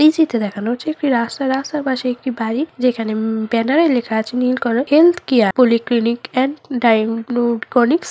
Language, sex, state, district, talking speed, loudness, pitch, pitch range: Bengali, female, West Bengal, Malda, 150 wpm, -17 LUFS, 250 Hz, 230-270 Hz